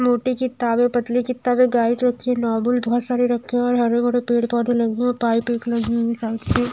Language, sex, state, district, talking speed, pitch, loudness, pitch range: Hindi, female, Bihar, Katihar, 225 wpm, 240 Hz, -20 LUFS, 235-245 Hz